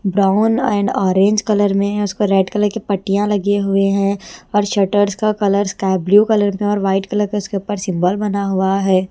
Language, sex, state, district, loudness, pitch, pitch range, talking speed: Hindi, female, Bihar, West Champaran, -16 LUFS, 200 Hz, 195-205 Hz, 215 wpm